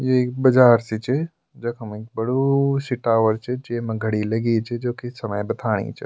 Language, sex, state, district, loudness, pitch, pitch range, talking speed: Garhwali, male, Uttarakhand, Tehri Garhwal, -21 LUFS, 120 Hz, 110-130 Hz, 190 wpm